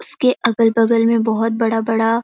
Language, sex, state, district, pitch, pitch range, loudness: Hindi, female, Chhattisgarh, Korba, 230 Hz, 225-230 Hz, -16 LUFS